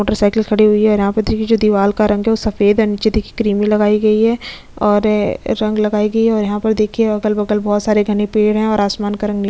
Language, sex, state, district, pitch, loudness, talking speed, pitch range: Hindi, female, Chhattisgarh, Sukma, 210 Hz, -15 LUFS, 270 wpm, 205-215 Hz